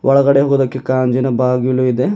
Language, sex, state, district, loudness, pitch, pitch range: Kannada, male, Karnataka, Bidar, -14 LUFS, 130 Hz, 125-135 Hz